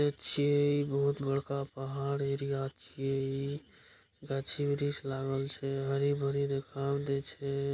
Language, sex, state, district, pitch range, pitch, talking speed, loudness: Maithili, male, Bihar, Begusarai, 135-140 Hz, 140 Hz, 100 wpm, -34 LUFS